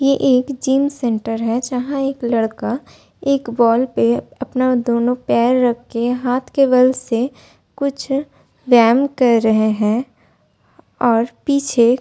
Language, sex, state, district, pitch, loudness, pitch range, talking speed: Hindi, female, Uttar Pradesh, Budaun, 250 Hz, -17 LUFS, 235-270 Hz, 140 wpm